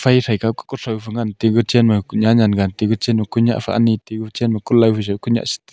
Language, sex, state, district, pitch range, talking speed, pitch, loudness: Wancho, male, Arunachal Pradesh, Longding, 110-115 Hz, 250 wpm, 115 Hz, -17 LUFS